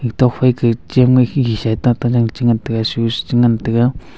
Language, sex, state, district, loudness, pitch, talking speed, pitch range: Wancho, male, Arunachal Pradesh, Longding, -15 LUFS, 120 Hz, 260 wpm, 115-125 Hz